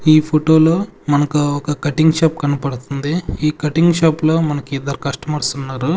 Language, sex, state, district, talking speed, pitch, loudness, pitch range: Telugu, male, Andhra Pradesh, Sri Satya Sai, 160 wpm, 150 Hz, -16 LUFS, 140-160 Hz